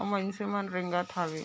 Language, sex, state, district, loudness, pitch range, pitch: Chhattisgarhi, female, Chhattisgarh, Raigarh, -32 LUFS, 175-200 Hz, 180 Hz